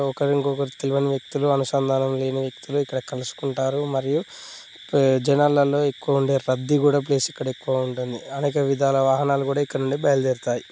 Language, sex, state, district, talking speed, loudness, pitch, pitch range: Telugu, male, Telangana, Nalgonda, 155 wpm, -22 LUFS, 140 Hz, 130-140 Hz